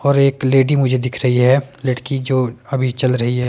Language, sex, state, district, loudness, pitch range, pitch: Hindi, male, Himachal Pradesh, Shimla, -17 LUFS, 125-135 Hz, 130 Hz